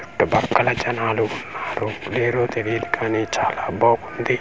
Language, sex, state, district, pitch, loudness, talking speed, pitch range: Telugu, male, Andhra Pradesh, Manyam, 115 Hz, -21 LUFS, 95 wpm, 110-120 Hz